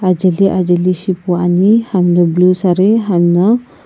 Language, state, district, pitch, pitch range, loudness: Sumi, Nagaland, Kohima, 185 Hz, 175-195 Hz, -12 LUFS